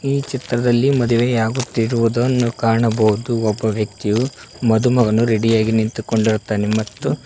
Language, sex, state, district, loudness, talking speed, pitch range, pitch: Kannada, male, Karnataka, Koppal, -18 LUFS, 90 wpm, 110-125 Hz, 115 Hz